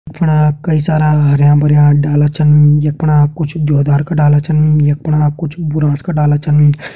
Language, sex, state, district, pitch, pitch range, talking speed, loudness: Hindi, male, Uttarakhand, Uttarkashi, 150 Hz, 145-155 Hz, 180 wpm, -12 LUFS